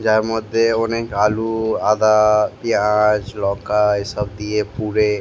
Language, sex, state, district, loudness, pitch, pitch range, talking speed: Bengali, male, West Bengal, Jalpaiguri, -18 LUFS, 105 Hz, 105-110 Hz, 125 wpm